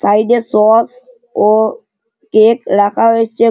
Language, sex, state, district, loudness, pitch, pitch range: Bengali, male, West Bengal, Malda, -12 LUFS, 225 Hz, 215-230 Hz